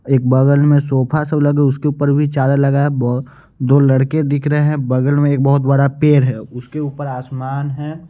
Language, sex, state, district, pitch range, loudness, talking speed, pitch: Hindi, male, Bihar, West Champaran, 130-145 Hz, -15 LUFS, 215 wpm, 140 Hz